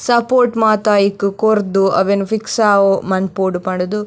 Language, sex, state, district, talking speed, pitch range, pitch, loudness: Tulu, female, Karnataka, Dakshina Kannada, 145 wpm, 195-220 Hz, 200 Hz, -15 LUFS